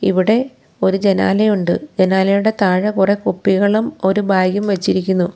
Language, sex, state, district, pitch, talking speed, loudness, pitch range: Malayalam, female, Kerala, Kollam, 195 Hz, 125 wpm, -16 LUFS, 190-205 Hz